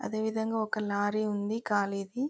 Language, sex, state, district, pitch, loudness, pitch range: Telugu, female, Telangana, Karimnagar, 215 Hz, -31 LUFS, 205-220 Hz